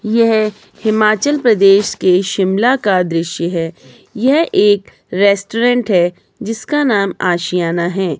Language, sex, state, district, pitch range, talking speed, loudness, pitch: Hindi, male, Himachal Pradesh, Shimla, 180-230 Hz, 115 wpm, -14 LUFS, 200 Hz